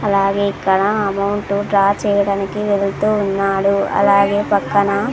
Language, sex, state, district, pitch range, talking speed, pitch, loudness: Telugu, female, Andhra Pradesh, Sri Satya Sai, 195-205 Hz, 115 wpm, 200 Hz, -16 LUFS